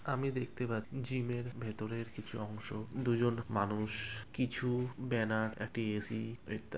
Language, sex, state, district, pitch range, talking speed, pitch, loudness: Bengali, male, West Bengal, Kolkata, 110-125 Hz, 160 wpm, 115 Hz, -38 LUFS